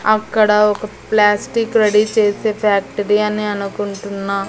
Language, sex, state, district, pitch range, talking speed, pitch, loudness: Telugu, female, Andhra Pradesh, Annamaya, 205-215 Hz, 105 wpm, 210 Hz, -16 LUFS